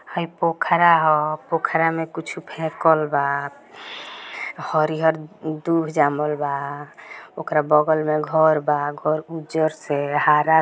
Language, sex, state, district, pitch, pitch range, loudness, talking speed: Bhojpuri, female, Bihar, Gopalganj, 155 Hz, 150-160 Hz, -21 LUFS, 125 wpm